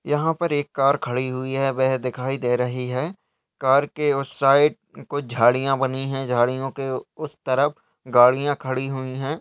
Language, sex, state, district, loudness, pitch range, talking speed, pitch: Hindi, male, Uttar Pradesh, Hamirpur, -22 LUFS, 130-145 Hz, 180 wpm, 135 Hz